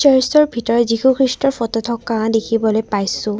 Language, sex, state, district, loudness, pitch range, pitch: Assamese, female, Assam, Kamrup Metropolitan, -16 LUFS, 225-265 Hz, 230 Hz